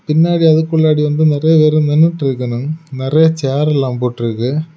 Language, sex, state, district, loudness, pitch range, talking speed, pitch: Tamil, male, Tamil Nadu, Kanyakumari, -13 LUFS, 135-160 Hz, 140 wpm, 150 Hz